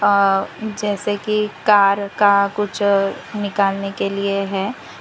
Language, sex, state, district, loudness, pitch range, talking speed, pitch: Hindi, female, Gujarat, Valsad, -18 LUFS, 195-205 Hz, 120 wpm, 200 Hz